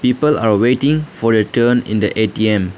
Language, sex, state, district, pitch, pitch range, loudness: English, male, Arunachal Pradesh, Lower Dibang Valley, 115 Hz, 110-125 Hz, -15 LUFS